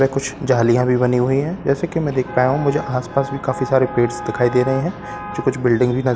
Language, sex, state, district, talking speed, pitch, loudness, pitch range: Hindi, male, Bihar, Katihar, 280 wpm, 130 Hz, -18 LUFS, 125-140 Hz